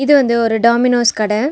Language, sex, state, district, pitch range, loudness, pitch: Tamil, female, Tamil Nadu, Nilgiris, 230-260 Hz, -13 LUFS, 235 Hz